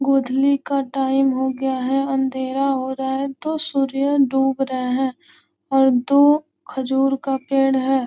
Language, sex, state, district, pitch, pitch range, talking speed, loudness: Hindi, female, Bihar, Gopalganj, 270 Hz, 265-275 Hz, 150 wpm, -20 LUFS